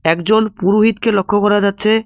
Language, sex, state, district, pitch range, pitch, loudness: Bengali, male, West Bengal, Cooch Behar, 200-220 Hz, 205 Hz, -14 LUFS